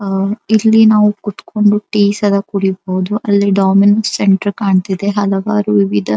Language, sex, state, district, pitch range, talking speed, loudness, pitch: Kannada, female, Karnataka, Dharwad, 195-210 Hz, 135 wpm, -13 LUFS, 200 Hz